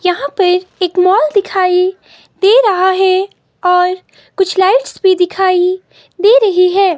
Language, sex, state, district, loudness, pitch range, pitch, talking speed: Hindi, female, Himachal Pradesh, Shimla, -12 LUFS, 360-385 Hz, 370 Hz, 135 wpm